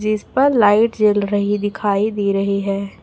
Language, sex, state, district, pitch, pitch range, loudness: Hindi, female, Chhattisgarh, Raipur, 205 Hz, 200-215 Hz, -17 LUFS